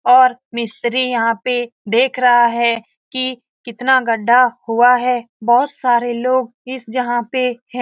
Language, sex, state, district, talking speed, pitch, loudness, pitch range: Hindi, female, Bihar, Lakhisarai, 155 wpm, 245 Hz, -16 LUFS, 235-255 Hz